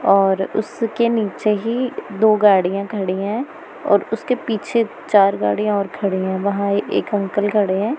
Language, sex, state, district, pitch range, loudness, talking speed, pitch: Hindi, female, Punjab, Pathankot, 195-220 Hz, -19 LUFS, 160 wpm, 205 Hz